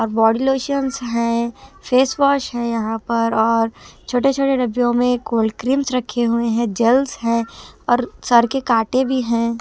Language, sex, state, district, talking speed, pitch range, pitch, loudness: Hindi, female, Himachal Pradesh, Shimla, 155 wpm, 230-260 Hz, 235 Hz, -18 LUFS